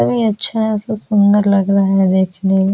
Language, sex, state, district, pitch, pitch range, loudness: Hindi, female, Bihar, Araria, 200 Hz, 190-215 Hz, -14 LUFS